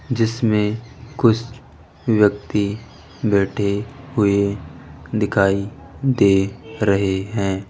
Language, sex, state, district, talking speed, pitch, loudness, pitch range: Hindi, male, Rajasthan, Jaipur, 70 wpm, 105 Hz, -20 LUFS, 100-115 Hz